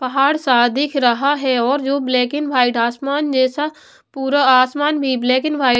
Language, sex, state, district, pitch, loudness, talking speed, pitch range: Hindi, female, Punjab, Pathankot, 270 Hz, -16 LUFS, 185 wpm, 255-285 Hz